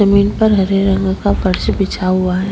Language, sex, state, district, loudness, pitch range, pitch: Hindi, female, Chhattisgarh, Sukma, -14 LUFS, 190-200 Hz, 195 Hz